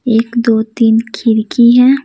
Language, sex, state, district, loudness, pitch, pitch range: Hindi, female, Bihar, Patna, -11 LUFS, 230 Hz, 225-245 Hz